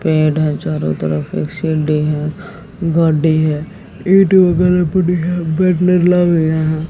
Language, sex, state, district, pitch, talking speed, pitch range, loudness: Hindi, female, Haryana, Jhajjar, 160 Hz, 140 wpm, 155-180 Hz, -14 LUFS